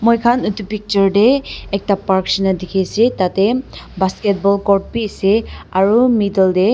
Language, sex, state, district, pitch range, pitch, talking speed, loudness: Nagamese, female, Nagaland, Dimapur, 190-225 Hz, 200 Hz, 170 wpm, -16 LUFS